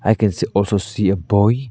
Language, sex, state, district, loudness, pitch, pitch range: English, male, Arunachal Pradesh, Lower Dibang Valley, -18 LUFS, 100 Hz, 100-110 Hz